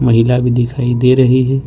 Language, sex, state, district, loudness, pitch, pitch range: Hindi, male, Jharkhand, Ranchi, -12 LUFS, 125 Hz, 120-130 Hz